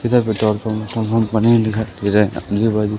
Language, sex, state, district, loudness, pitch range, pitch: Hindi, male, Madhya Pradesh, Umaria, -17 LUFS, 105-110 Hz, 110 Hz